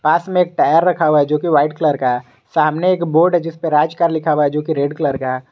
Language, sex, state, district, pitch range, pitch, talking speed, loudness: Hindi, male, Jharkhand, Garhwa, 145-165 Hz, 155 Hz, 325 wpm, -16 LUFS